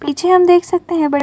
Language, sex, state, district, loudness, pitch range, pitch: Hindi, female, Uttar Pradesh, Muzaffarnagar, -13 LUFS, 300-360 Hz, 350 Hz